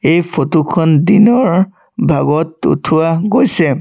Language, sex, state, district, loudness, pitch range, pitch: Assamese, male, Assam, Sonitpur, -12 LUFS, 155-190 Hz, 165 Hz